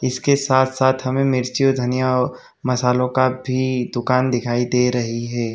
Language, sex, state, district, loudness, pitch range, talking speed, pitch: Hindi, male, Chhattisgarh, Bilaspur, -19 LUFS, 125-130 Hz, 160 wpm, 125 Hz